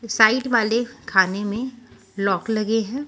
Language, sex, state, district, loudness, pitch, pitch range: Hindi, female, Maharashtra, Washim, -21 LUFS, 225 Hz, 205-245 Hz